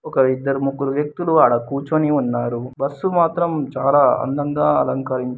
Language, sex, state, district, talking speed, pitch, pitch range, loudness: Telugu, male, Andhra Pradesh, Srikakulam, 145 wpm, 140 Hz, 130-150 Hz, -19 LUFS